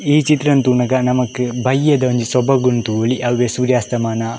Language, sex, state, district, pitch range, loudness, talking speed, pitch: Tulu, male, Karnataka, Dakshina Kannada, 120-130 Hz, -16 LUFS, 135 wpm, 125 Hz